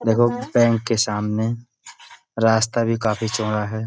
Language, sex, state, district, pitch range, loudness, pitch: Hindi, male, Uttar Pradesh, Budaun, 110-115 Hz, -20 LUFS, 115 Hz